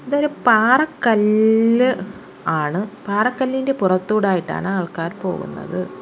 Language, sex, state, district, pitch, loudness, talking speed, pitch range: Malayalam, female, Kerala, Kollam, 215 Hz, -19 LUFS, 80 wpm, 185-250 Hz